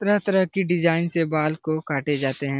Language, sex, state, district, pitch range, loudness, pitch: Hindi, male, Bihar, Lakhisarai, 145-180 Hz, -23 LUFS, 160 Hz